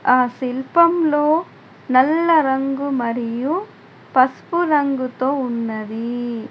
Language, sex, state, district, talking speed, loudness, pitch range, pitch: Telugu, female, Telangana, Adilabad, 75 wpm, -19 LUFS, 245-300 Hz, 265 Hz